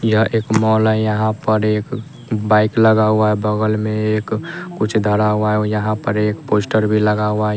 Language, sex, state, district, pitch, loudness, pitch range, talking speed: Hindi, male, Bihar, West Champaran, 110 Hz, -17 LUFS, 105-110 Hz, 205 wpm